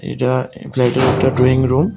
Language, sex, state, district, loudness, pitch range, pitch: Bengali, male, Tripura, West Tripura, -16 LUFS, 125-130 Hz, 130 Hz